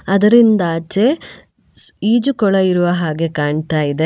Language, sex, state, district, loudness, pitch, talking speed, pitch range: Kannada, female, Karnataka, Bangalore, -15 LUFS, 180 Hz, 105 wpm, 160-215 Hz